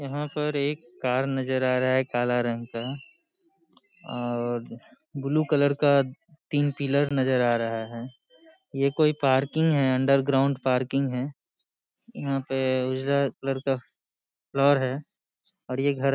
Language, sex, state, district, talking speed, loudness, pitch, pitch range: Hindi, male, Bihar, Saharsa, 145 wpm, -26 LUFS, 135 Hz, 125-145 Hz